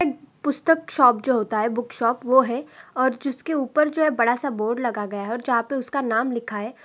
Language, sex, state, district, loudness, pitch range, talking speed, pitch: Hindi, female, Maharashtra, Aurangabad, -22 LUFS, 235-280 Hz, 230 wpm, 250 Hz